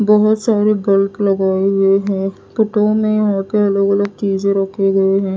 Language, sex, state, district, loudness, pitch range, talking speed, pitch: Hindi, female, Odisha, Nuapada, -15 LUFS, 195-210 Hz, 170 wpm, 200 Hz